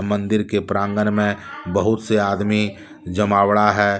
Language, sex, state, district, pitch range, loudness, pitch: Hindi, male, Jharkhand, Deoghar, 100-105 Hz, -19 LUFS, 105 Hz